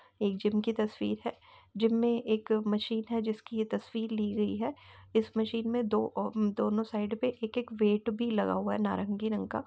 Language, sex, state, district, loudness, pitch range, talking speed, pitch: Hindi, female, Uttar Pradesh, Etah, -32 LUFS, 210-230 Hz, 205 wpm, 220 Hz